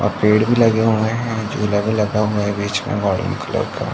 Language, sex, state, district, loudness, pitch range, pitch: Hindi, male, Uttar Pradesh, Jalaun, -18 LUFS, 105-115 Hz, 105 Hz